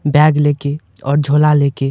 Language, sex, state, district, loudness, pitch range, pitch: Hindi, male, Bihar, Supaul, -14 LUFS, 140-150 Hz, 145 Hz